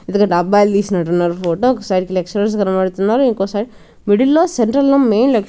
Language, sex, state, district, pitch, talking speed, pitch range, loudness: Telugu, female, Telangana, Nalgonda, 205 Hz, 205 wpm, 185-235 Hz, -15 LUFS